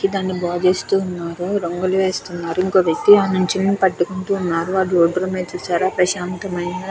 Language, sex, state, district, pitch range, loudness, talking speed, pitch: Telugu, female, Andhra Pradesh, Krishna, 175-190 Hz, -19 LUFS, 140 wpm, 185 Hz